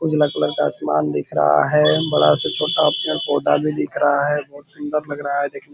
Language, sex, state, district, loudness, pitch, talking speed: Hindi, male, Bihar, Purnia, -18 LUFS, 140 Hz, 230 wpm